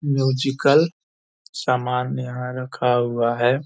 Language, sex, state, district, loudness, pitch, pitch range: Hindi, male, Bihar, Purnia, -21 LUFS, 125 Hz, 120-130 Hz